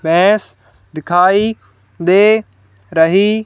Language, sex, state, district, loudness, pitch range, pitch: Hindi, female, Haryana, Charkhi Dadri, -13 LUFS, 155-210 Hz, 180 Hz